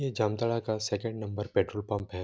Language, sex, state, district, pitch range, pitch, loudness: Hindi, male, Jharkhand, Jamtara, 105-115 Hz, 105 Hz, -31 LUFS